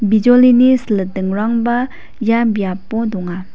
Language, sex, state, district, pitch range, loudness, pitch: Garo, female, Meghalaya, West Garo Hills, 195-240 Hz, -15 LUFS, 225 Hz